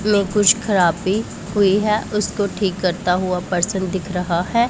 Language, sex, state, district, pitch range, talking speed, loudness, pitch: Hindi, female, Punjab, Pathankot, 180-205 Hz, 165 wpm, -19 LUFS, 195 Hz